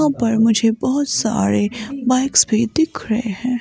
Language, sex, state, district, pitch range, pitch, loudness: Hindi, female, Himachal Pradesh, Shimla, 220-265 Hz, 235 Hz, -17 LUFS